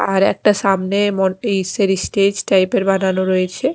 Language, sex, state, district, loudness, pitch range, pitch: Bengali, female, Odisha, Khordha, -16 LUFS, 190-200 Hz, 195 Hz